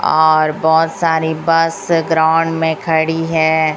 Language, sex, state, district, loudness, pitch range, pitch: Hindi, female, Chhattisgarh, Raipur, -14 LUFS, 160-165 Hz, 160 Hz